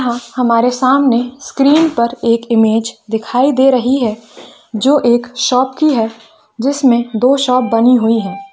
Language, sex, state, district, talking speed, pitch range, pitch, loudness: Hindi, female, Chhattisgarh, Bilaspur, 150 wpm, 230-265 Hz, 245 Hz, -13 LUFS